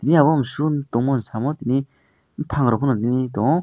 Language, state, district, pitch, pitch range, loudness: Kokborok, Tripura, West Tripura, 135 Hz, 120-150 Hz, -21 LUFS